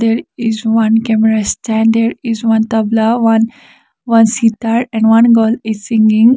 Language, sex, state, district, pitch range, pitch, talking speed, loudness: English, female, Sikkim, Gangtok, 220-230 Hz, 225 Hz, 160 wpm, -12 LUFS